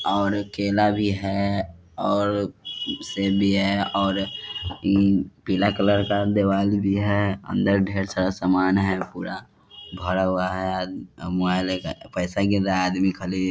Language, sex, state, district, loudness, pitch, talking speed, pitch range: Hindi, male, Bihar, Vaishali, -23 LUFS, 100 Hz, 155 wpm, 95-100 Hz